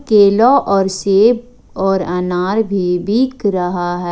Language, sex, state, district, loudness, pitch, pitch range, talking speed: Hindi, female, Jharkhand, Ranchi, -14 LUFS, 195 Hz, 180-225 Hz, 130 wpm